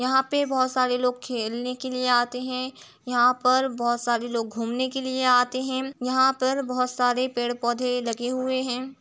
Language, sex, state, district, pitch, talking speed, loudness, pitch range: Hindi, female, Uttar Pradesh, Jalaun, 250 Hz, 185 wpm, -24 LUFS, 245-260 Hz